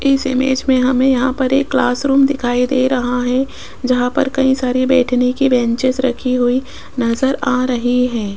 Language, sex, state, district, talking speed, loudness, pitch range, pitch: Hindi, female, Rajasthan, Jaipur, 185 wpm, -15 LUFS, 250-265 Hz, 255 Hz